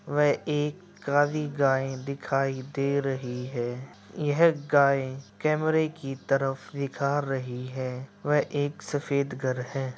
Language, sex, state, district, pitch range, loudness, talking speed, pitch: Hindi, male, Uttar Pradesh, Budaun, 135-145 Hz, -28 LUFS, 120 wpm, 140 Hz